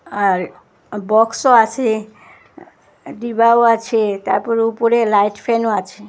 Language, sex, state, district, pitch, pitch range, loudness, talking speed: Bengali, female, Assam, Hailakandi, 220 Hz, 205-230 Hz, -15 LUFS, 110 wpm